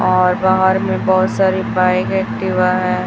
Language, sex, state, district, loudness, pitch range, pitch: Hindi, female, Chhattisgarh, Raipur, -15 LUFS, 185-190 Hz, 185 Hz